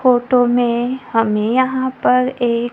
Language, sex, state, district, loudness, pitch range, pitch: Hindi, female, Maharashtra, Gondia, -16 LUFS, 235-255 Hz, 245 Hz